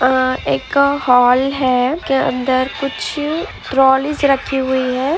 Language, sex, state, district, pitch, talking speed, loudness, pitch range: Hindi, female, Andhra Pradesh, Anantapur, 265 Hz, 125 wpm, -16 LUFS, 255-275 Hz